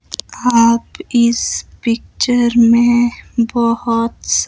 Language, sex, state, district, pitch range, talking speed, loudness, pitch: Hindi, female, Himachal Pradesh, Shimla, 230-240 Hz, 80 wpm, -14 LUFS, 235 Hz